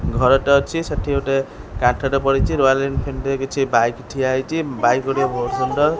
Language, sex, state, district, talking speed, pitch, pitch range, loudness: Odia, female, Odisha, Khordha, 170 wpm, 135 Hz, 125-140 Hz, -19 LUFS